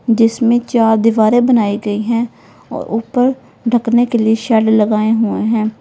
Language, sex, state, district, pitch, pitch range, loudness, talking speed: Hindi, female, Uttar Pradesh, Lalitpur, 230 Hz, 220-240 Hz, -14 LUFS, 155 wpm